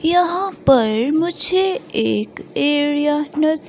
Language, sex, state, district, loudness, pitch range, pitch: Hindi, female, Himachal Pradesh, Shimla, -17 LUFS, 285-350 Hz, 300 Hz